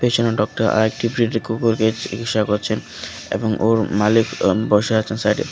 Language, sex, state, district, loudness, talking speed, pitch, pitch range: Bengali, male, Tripura, West Tripura, -19 LUFS, 165 wpm, 110 Hz, 105-115 Hz